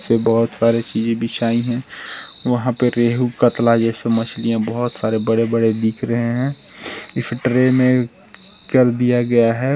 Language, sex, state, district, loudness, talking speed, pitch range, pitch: Hindi, male, Chhattisgarh, Sarguja, -18 LUFS, 165 wpm, 115-125 Hz, 120 Hz